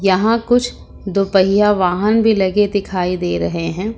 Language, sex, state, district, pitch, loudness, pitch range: Hindi, female, Uttar Pradesh, Lucknow, 195 Hz, -16 LUFS, 185-210 Hz